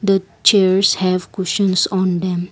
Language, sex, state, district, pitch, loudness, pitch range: English, female, Assam, Kamrup Metropolitan, 190 Hz, -16 LUFS, 185-195 Hz